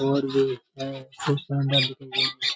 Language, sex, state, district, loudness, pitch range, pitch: Rajasthani, male, Rajasthan, Churu, -25 LUFS, 135-140 Hz, 135 Hz